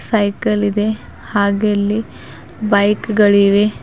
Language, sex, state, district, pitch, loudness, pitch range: Kannada, female, Karnataka, Bidar, 205 Hz, -15 LUFS, 200-215 Hz